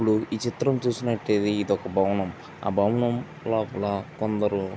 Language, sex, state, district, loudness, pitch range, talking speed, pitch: Telugu, male, Andhra Pradesh, Visakhapatnam, -26 LUFS, 100-120 Hz, 150 wpm, 105 Hz